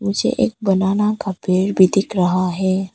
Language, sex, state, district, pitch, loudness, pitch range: Hindi, female, Arunachal Pradesh, Papum Pare, 190 Hz, -18 LUFS, 185-200 Hz